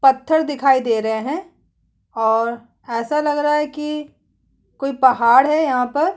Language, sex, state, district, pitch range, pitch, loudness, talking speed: Hindi, female, Uttarakhand, Tehri Garhwal, 235-300 Hz, 275 Hz, -18 LUFS, 155 wpm